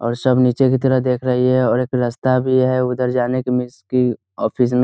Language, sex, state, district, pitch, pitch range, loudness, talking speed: Hindi, male, Bihar, Muzaffarpur, 125 Hz, 125-130 Hz, -17 LUFS, 250 wpm